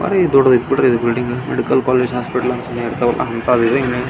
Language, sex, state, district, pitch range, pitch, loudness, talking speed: Kannada, male, Karnataka, Belgaum, 120-125 Hz, 125 Hz, -16 LUFS, 60 wpm